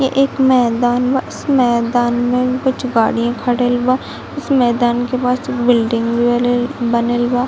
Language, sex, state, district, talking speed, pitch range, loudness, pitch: Hindi, female, Chhattisgarh, Bilaspur, 160 wpm, 240-255 Hz, -15 LUFS, 245 Hz